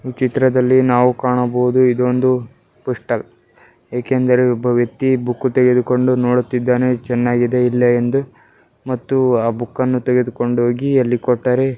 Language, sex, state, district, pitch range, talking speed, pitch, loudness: Kannada, male, Karnataka, Bellary, 125-130 Hz, 145 wpm, 125 Hz, -16 LUFS